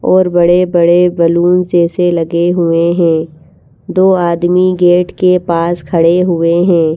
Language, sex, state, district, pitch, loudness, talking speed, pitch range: Hindi, female, Madhya Pradesh, Bhopal, 175 Hz, -11 LUFS, 130 wpm, 170-180 Hz